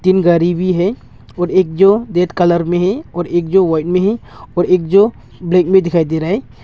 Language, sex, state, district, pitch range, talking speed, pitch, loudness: Hindi, male, Arunachal Pradesh, Longding, 175-190 Hz, 235 wpm, 180 Hz, -14 LUFS